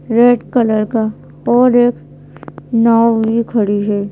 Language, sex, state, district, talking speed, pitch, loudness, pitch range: Hindi, female, Madhya Pradesh, Bhopal, 130 wpm, 230 Hz, -13 LUFS, 215-240 Hz